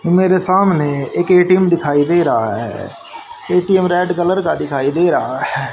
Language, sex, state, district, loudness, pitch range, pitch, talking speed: Hindi, male, Haryana, Charkhi Dadri, -15 LUFS, 170-185 Hz, 180 Hz, 170 wpm